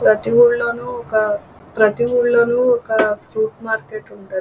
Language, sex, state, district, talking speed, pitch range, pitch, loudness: Telugu, female, Andhra Pradesh, Krishna, 110 wpm, 215-240 Hz, 225 Hz, -17 LUFS